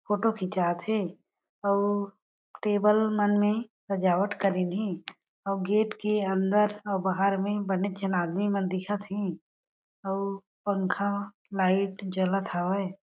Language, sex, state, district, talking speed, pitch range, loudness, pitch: Chhattisgarhi, female, Chhattisgarh, Jashpur, 130 wpm, 190-205 Hz, -28 LUFS, 195 Hz